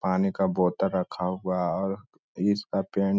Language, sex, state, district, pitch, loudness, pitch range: Hindi, male, Bihar, Lakhisarai, 95 Hz, -27 LUFS, 90-100 Hz